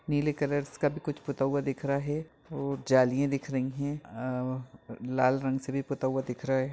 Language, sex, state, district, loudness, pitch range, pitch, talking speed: Hindi, male, Bihar, Madhepura, -31 LUFS, 130-145 Hz, 140 Hz, 215 wpm